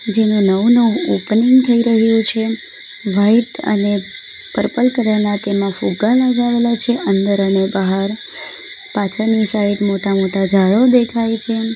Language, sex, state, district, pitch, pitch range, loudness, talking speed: Gujarati, female, Gujarat, Valsad, 220 Hz, 200-235 Hz, -15 LUFS, 125 wpm